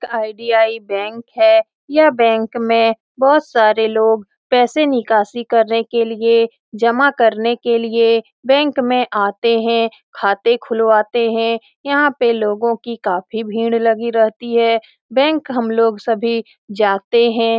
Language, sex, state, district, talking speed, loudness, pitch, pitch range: Hindi, female, Bihar, Saran, 135 wpm, -16 LUFS, 230 Hz, 225-240 Hz